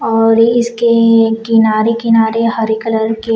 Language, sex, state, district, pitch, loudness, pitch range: Hindi, female, Uttar Pradesh, Shamli, 225 Hz, -12 LUFS, 225-230 Hz